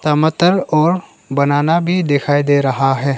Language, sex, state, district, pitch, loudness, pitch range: Hindi, male, Arunachal Pradesh, Lower Dibang Valley, 145 Hz, -15 LUFS, 140-170 Hz